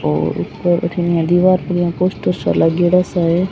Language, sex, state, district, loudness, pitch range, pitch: Rajasthani, female, Rajasthan, Churu, -16 LUFS, 145-180 Hz, 175 Hz